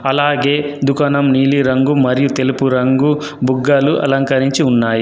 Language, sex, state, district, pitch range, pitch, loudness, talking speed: Telugu, male, Telangana, Adilabad, 130-145 Hz, 135 Hz, -14 LUFS, 110 wpm